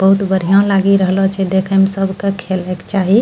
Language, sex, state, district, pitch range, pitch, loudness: Angika, female, Bihar, Bhagalpur, 190-195 Hz, 195 Hz, -14 LUFS